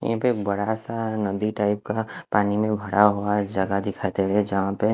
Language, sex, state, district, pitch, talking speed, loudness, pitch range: Hindi, male, Punjab, Fazilka, 105 Hz, 195 wpm, -24 LUFS, 100-110 Hz